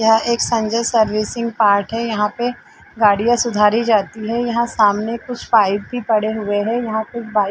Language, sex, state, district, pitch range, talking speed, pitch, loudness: Hindi, female, Chhattisgarh, Bilaspur, 210-235 Hz, 190 wpm, 225 Hz, -17 LUFS